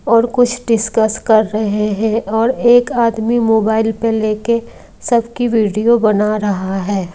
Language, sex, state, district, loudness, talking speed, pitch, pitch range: Hindi, female, Maharashtra, Mumbai Suburban, -14 LUFS, 145 wpm, 225 Hz, 215-235 Hz